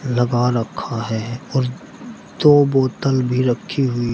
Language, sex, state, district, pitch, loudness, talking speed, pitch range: Hindi, male, Uttar Pradesh, Shamli, 125 Hz, -18 LUFS, 145 wpm, 120-140 Hz